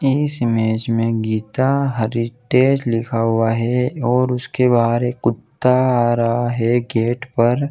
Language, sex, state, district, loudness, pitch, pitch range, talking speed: Hindi, male, Chhattisgarh, Bilaspur, -18 LUFS, 120 Hz, 115-125 Hz, 150 wpm